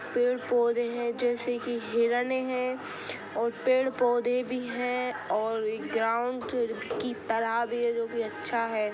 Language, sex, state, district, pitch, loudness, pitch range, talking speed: Hindi, female, Bihar, Sitamarhi, 240 Hz, -29 LUFS, 230-250 Hz, 135 wpm